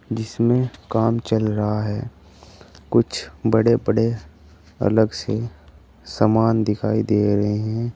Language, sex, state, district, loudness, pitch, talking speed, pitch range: Hindi, male, Uttar Pradesh, Saharanpur, -21 LUFS, 110 Hz, 115 wpm, 100-115 Hz